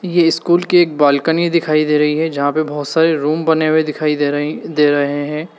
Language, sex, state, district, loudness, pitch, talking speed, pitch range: Hindi, male, Uttar Pradesh, Lalitpur, -15 LUFS, 155 Hz, 235 wpm, 145-165 Hz